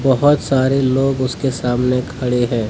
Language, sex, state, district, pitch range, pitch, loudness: Hindi, male, Jharkhand, Deoghar, 125-135 Hz, 130 Hz, -17 LUFS